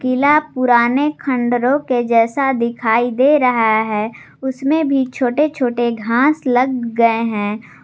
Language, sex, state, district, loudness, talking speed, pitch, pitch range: Hindi, female, Jharkhand, Garhwa, -16 LUFS, 130 wpm, 250 Hz, 235-275 Hz